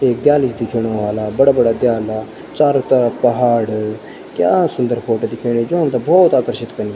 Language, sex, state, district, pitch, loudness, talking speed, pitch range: Garhwali, male, Uttarakhand, Tehri Garhwal, 120 Hz, -15 LUFS, 170 wpm, 110-130 Hz